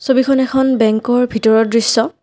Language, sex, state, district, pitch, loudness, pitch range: Assamese, female, Assam, Kamrup Metropolitan, 240 Hz, -14 LUFS, 225-260 Hz